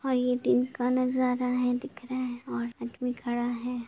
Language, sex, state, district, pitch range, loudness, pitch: Hindi, female, Bihar, Gopalganj, 240-255 Hz, -29 LUFS, 250 Hz